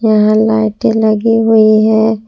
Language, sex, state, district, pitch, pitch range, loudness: Hindi, female, Jharkhand, Palamu, 220 Hz, 215-225 Hz, -10 LUFS